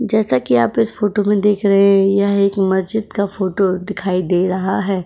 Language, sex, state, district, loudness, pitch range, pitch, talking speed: Hindi, female, Uttar Pradesh, Budaun, -16 LUFS, 185-205 Hz, 195 Hz, 215 wpm